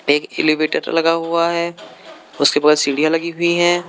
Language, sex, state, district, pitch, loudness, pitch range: Hindi, male, Uttar Pradesh, Lucknow, 165 Hz, -17 LUFS, 150-170 Hz